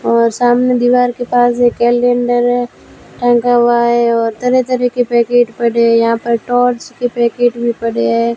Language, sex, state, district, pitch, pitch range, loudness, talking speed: Hindi, female, Rajasthan, Bikaner, 240 Hz, 235-245 Hz, -13 LUFS, 180 wpm